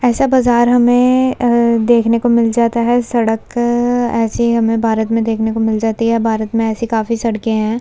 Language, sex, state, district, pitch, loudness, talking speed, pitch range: Hindi, female, Uttar Pradesh, Budaun, 230 Hz, -14 LUFS, 185 wpm, 225-240 Hz